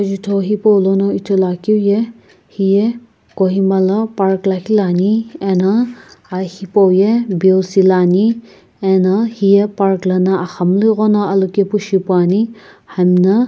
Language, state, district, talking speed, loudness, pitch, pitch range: Sumi, Nagaland, Kohima, 140 wpm, -14 LUFS, 195 Hz, 190-210 Hz